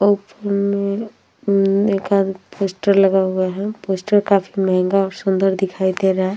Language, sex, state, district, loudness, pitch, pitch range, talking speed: Hindi, female, Uttar Pradesh, Hamirpur, -18 LUFS, 195 Hz, 190-200 Hz, 150 wpm